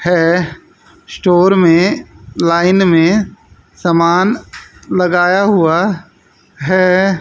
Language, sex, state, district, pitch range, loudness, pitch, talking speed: Hindi, female, Haryana, Jhajjar, 170-190 Hz, -12 LUFS, 180 Hz, 75 wpm